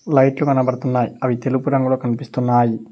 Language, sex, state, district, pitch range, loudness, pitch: Telugu, male, Telangana, Hyderabad, 120-135 Hz, -18 LUFS, 130 Hz